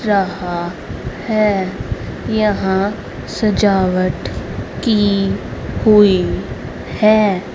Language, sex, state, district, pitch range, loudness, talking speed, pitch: Hindi, female, Haryana, Rohtak, 185-210 Hz, -17 LUFS, 55 wpm, 195 Hz